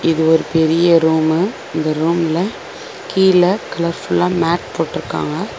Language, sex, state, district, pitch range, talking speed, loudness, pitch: Tamil, female, Tamil Nadu, Chennai, 160-180 Hz, 105 wpm, -16 LUFS, 170 Hz